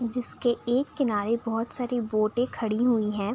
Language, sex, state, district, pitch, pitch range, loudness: Hindi, female, Bihar, Saharsa, 235 Hz, 220-245 Hz, -26 LUFS